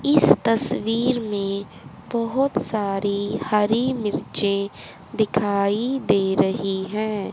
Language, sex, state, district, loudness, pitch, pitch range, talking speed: Hindi, female, Haryana, Charkhi Dadri, -22 LUFS, 210 Hz, 200-230 Hz, 90 wpm